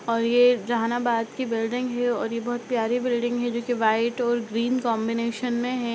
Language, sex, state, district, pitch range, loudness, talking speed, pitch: Hindi, female, Bihar, Jahanabad, 230-245 Hz, -24 LUFS, 200 wpm, 240 Hz